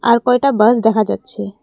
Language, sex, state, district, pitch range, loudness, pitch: Bengali, female, Assam, Kamrup Metropolitan, 215-245 Hz, -14 LUFS, 230 Hz